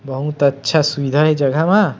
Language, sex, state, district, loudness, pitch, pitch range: Chhattisgarhi, male, Chhattisgarh, Sukma, -16 LUFS, 145 Hz, 140-155 Hz